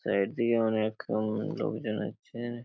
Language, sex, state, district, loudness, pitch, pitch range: Bengali, male, West Bengal, Paschim Medinipur, -31 LUFS, 110 Hz, 110-120 Hz